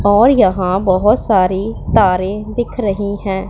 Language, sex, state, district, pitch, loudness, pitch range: Hindi, female, Punjab, Pathankot, 200 Hz, -14 LUFS, 190-210 Hz